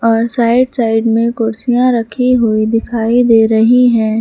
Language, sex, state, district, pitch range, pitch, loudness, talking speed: Hindi, female, Uttar Pradesh, Lucknow, 225-245 Hz, 230 Hz, -12 LUFS, 155 wpm